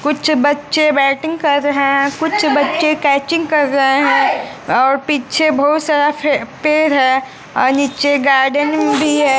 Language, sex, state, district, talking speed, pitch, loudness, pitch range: Hindi, female, Bihar, West Champaran, 145 wpm, 290 Hz, -14 LUFS, 275-300 Hz